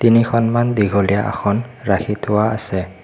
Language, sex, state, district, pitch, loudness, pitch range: Assamese, male, Assam, Kamrup Metropolitan, 105 Hz, -17 LUFS, 100-115 Hz